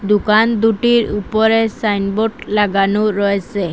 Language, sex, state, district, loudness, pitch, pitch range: Bengali, female, Assam, Hailakandi, -15 LUFS, 210 Hz, 200-225 Hz